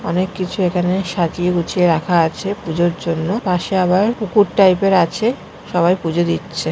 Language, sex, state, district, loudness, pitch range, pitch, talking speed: Bengali, female, West Bengal, Paschim Medinipur, -17 LUFS, 170-190 Hz, 180 Hz, 160 wpm